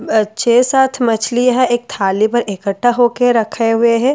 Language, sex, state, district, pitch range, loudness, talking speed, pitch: Hindi, female, Bihar, Katihar, 225-245 Hz, -14 LUFS, 230 wpm, 235 Hz